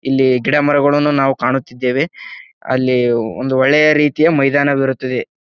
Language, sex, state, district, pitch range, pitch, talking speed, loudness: Kannada, male, Karnataka, Bijapur, 130-145 Hz, 135 Hz, 110 wpm, -14 LUFS